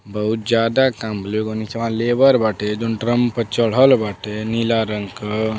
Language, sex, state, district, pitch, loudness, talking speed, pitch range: Bhojpuri, male, Uttar Pradesh, Deoria, 110 Hz, -19 LUFS, 160 wpm, 105-115 Hz